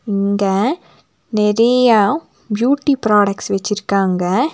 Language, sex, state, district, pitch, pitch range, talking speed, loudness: Tamil, female, Tamil Nadu, Nilgiris, 210 Hz, 200-245 Hz, 65 wpm, -16 LUFS